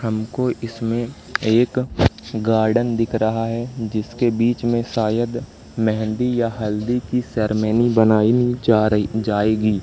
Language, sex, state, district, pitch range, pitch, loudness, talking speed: Hindi, male, Madhya Pradesh, Katni, 110-120 Hz, 115 Hz, -20 LUFS, 120 wpm